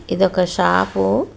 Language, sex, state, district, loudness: Telugu, female, Telangana, Hyderabad, -17 LUFS